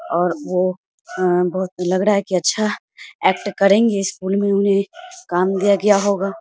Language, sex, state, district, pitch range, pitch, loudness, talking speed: Hindi, female, Bihar, Samastipur, 185-205 Hz, 195 Hz, -18 LUFS, 160 wpm